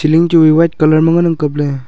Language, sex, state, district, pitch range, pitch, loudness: Wancho, male, Arunachal Pradesh, Longding, 150-165 Hz, 155 Hz, -11 LUFS